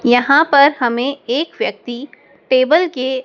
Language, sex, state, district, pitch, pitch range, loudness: Hindi, male, Madhya Pradesh, Dhar, 265 Hz, 250-295 Hz, -14 LUFS